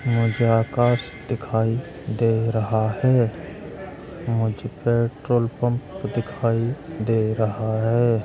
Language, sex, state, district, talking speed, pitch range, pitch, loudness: Hindi, male, Uttar Pradesh, Hamirpur, 95 wpm, 110-120 Hz, 115 Hz, -23 LUFS